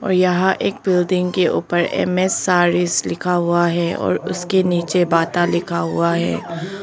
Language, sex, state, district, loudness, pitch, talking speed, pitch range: Hindi, female, Arunachal Pradesh, Papum Pare, -18 LUFS, 175 Hz, 160 wpm, 170-185 Hz